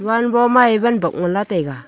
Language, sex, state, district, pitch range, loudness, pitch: Wancho, female, Arunachal Pradesh, Longding, 175-240 Hz, -16 LUFS, 220 Hz